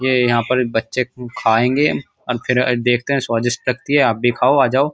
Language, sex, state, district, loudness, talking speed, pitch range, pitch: Hindi, male, Uttar Pradesh, Muzaffarnagar, -17 LUFS, 205 wpm, 120-130 Hz, 125 Hz